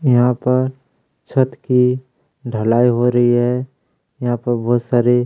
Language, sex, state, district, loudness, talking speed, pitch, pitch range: Hindi, male, Chhattisgarh, Kabirdham, -17 LUFS, 135 wpm, 125 Hz, 120-130 Hz